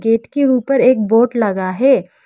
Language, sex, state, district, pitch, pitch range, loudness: Hindi, female, Arunachal Pradesh, Lower Dibang Valley, 235 Hz, 220-260 Hz, -14 LUFS